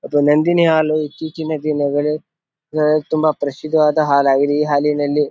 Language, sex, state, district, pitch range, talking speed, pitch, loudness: Kannada, male, Karnataka, Bijapur, 145-155 Hz, 135 wpm, 150 Hz, -17 LUFS